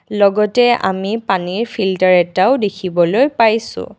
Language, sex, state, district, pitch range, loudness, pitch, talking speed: Assamese, female, Assam, Kamrup Metropolitan, 185-230 Hz, -15 LUFS, 200 Hz, 105 wpm